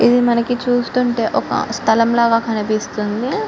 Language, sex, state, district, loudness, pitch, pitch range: Telugu, female, Telangana, Karimnagar, -17 LUFS, 235 Hz, 220-245 Hz